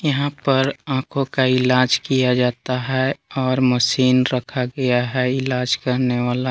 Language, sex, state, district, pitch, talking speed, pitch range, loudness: Hindi, male, Jharkhand, Palamu, 130 Hz, 150 wpm, 125-135 Hz, -19 LUFS